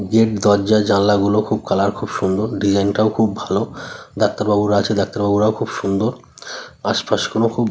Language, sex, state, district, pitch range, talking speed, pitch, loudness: Bengali, male, West Bengal, North 24 Parganas, 100-110 Hz, 170 wpm, 105 Hz, -18 LUFS